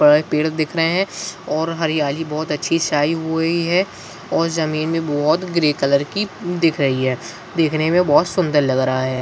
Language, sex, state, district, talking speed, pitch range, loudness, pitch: Hindi, male, Bihar, Begusarai, 195 wpm, 150-165 Hz, -19 LUFS, 160 Hz